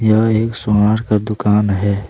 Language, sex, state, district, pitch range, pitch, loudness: Hindi, male, Jharkhand, Deoghar, 105-110 Hz, 105 Hz, -15 LUFS